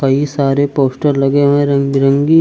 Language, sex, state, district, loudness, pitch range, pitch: Hindi, male, Uttar Pradesh, Lucknow, -13 LUFS, 135-145 Hz, 140 Hz